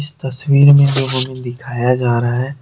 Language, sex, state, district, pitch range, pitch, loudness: Hindi, male, Jharkhand, Deoghar, 125-140 Hz, 130 Hz, -14 LUFS